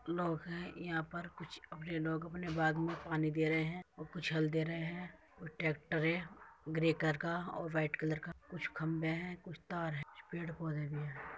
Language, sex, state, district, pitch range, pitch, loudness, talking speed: Hindi, female, Uttar Pradesh, Muzaffarnagar, 155-170 Hz, 160 Hz, -39 LUFS, 210 wpm